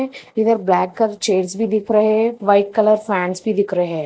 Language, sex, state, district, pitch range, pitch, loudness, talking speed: Hindi, female, Telangana, Hyderabad, 185-220 Hz, 210 Hz, -17 LUFS, 220 wpm